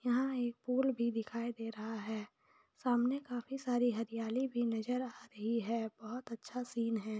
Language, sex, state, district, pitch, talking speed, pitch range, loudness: Hindi, female, Jharkhand, Jamtara, 240 Hz, 175 wpm, 225-250 Hz, -38 LUFS